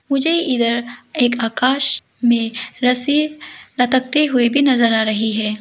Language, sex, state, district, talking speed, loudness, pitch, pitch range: Hindi, female, Arunachal Pradesh, Lower Dibang Valley, 140 wpm, -17 LUFS, 250 Hz, 235-285 Hz